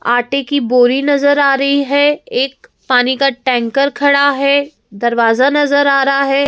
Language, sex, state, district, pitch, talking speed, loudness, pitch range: Hindi, female, Madhya Pradesh, Bhopal, 275 Hz, 165 wpm, -13 LUFS, 250-285 Hz